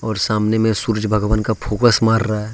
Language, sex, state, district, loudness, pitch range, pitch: Hindi, male, Jharkhand, Ranchi, -17 LUFS, 105-110 Hz, 110 Hz